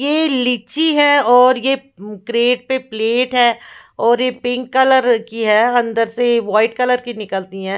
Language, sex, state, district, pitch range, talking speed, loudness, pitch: Hindi, female, Punjab, Fazilka, 225-255 Hz, 175 wpm, -15 LUFS, 245 Hz